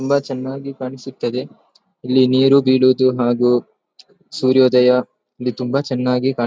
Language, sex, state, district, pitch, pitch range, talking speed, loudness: Kannada, male, Karnataka, Dakshina Kannada, 130 Hz, 125-135 Hz, 110 wpm, -17 LUFS